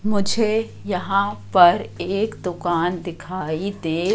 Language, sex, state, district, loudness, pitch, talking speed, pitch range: Hindi, female, Madhya Pradesh, Katni, -21 LUFS, 185 Hz, 100 wpm, 175-205 Hz